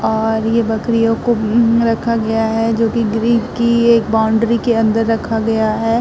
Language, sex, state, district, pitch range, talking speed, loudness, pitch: Hindi, female, Uttar Pradesh, Muzaffarnagar, 220-230 Hz, 170 wpm, -15 LUFS, 225 Hz